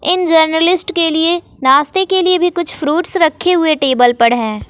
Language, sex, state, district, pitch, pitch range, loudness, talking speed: Hindi, female, Bihar, West Champaran, 325 Hz, 285-355 Hz, -13 LUFS, 190 wpm